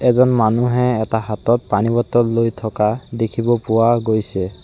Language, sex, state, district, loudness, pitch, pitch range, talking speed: Assamese, male, Assam, Sonitpur, -17 LUFS, 115 Hz, 110-120 Hz, 140 wpm